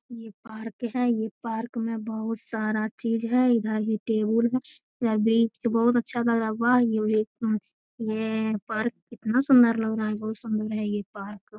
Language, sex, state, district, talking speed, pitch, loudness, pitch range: Hindi, female, Bihar, Jamui, 175 wpm, 225 Hz, -26 LUFS, 215-235 Hz